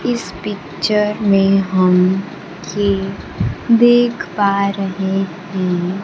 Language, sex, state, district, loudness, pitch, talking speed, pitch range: Hindi, male, Bihar, Kaimur, -16 LUFS, 195 Hz, 90 wpm, 185-210 Hz